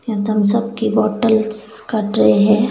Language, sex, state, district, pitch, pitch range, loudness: Hindi, female, Bihar, Begusarai, 215 Hz, 210-220 Hz, -15 LUFS